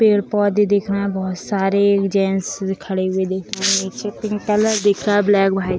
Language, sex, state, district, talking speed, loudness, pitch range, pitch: Hindi, female, Bihar, Purnia, 195 wpm, -18 LUFS, 195-205 Hz, 200 Hz